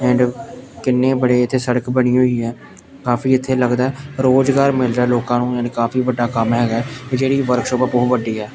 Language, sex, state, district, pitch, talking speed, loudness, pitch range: Punjabi, male, Punjab, Pathankot, 125 Hz, 175 wpm, -17 LUFS, 120-130 Hz